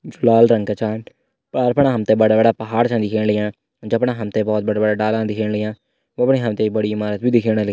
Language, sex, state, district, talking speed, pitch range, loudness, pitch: Hindi, male, Uttarakhand, Uttarkashi, 235 wpm, 105-115 Hz, -18 LUFS, 110 Hz